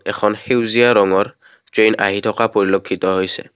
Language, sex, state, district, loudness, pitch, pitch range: Assamese, male, Assam, Kamrup Metropolitan, -16 LUFS, 105 Hz, 95-110 Hz